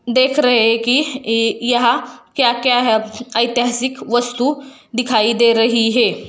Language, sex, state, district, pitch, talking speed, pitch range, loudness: Hindi, female, Jharkhand, Jamtara, 240 Hz, 135 wpm, 230-255 Hz, -16 LUFS